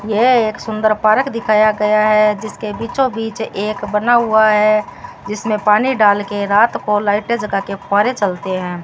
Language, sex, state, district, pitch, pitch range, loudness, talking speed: Hindi, female, Rajasthan, Bikaner, 215 Hz, 205-220 Hz, -15 LUFS, 175 wpm